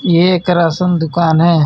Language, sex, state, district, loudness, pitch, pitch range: Hindi, male, Jharkhand, Ranchi, -13 LUFS, 170 Hz, 165-180 Hz